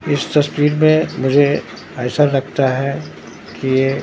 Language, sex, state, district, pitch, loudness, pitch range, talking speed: Hindi, male, Bihar, Katihar, 140 Hz, -16 LUFS, 135-150 Hz, 135 wpm